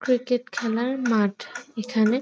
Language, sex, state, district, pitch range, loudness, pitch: Bengali, female, West Bengal, Purulia, 220-250 Hz, -25 LUFS, 240 Hz